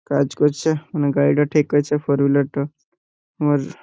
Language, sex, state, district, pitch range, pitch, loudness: Bengali, male, West Bengal, Purulia, 140-150 Hz, 145 Hz, -19 LUFS